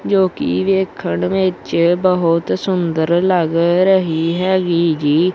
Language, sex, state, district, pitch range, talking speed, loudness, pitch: Punjabi, male, Punjab, Kapurthala, 165-185 Hz, 110 wpm, -16 LUFS, 175 Hz